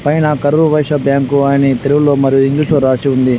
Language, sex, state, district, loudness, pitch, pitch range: Telugu, male, Telangana, Adilabad, -12 LUFS, 140 Hz, 135-150 Hz